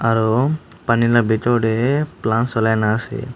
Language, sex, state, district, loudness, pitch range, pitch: Nagamese, male, Nagaland, Dimapur, -18 LUFS, 110-125 Hz, 115 Hz